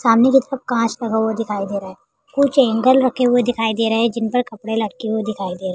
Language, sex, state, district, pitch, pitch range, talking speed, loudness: Hindi, female, Uttar Pradesh, Jalaun, 230 Hz, 220-250 Hz, 270 wpm, -18 LUFS